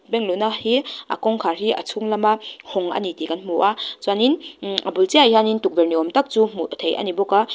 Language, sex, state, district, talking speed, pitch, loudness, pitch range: Mizo, female, Mizoram, Aizawl, 255 wpm, 215 Hz, -20 LUFS, 190-230 Hz